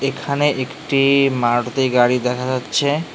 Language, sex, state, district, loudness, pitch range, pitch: Bengali, male, West Bengal, Cooch Behar, -18 LUFS, 125-140 Hz, 135 Hz